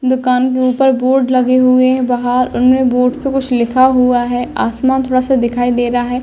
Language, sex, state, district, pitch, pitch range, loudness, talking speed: Hindi, female, Uttar Pradesh, Hamirpur, 255 Hz, 245-260 Hz, -13 LUFS, 210 wpm